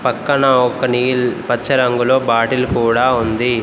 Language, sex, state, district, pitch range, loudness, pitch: Telugu, male, Telangana, Komaram Bheem, 120-130 Hz, -15 LUFS, 125 Hz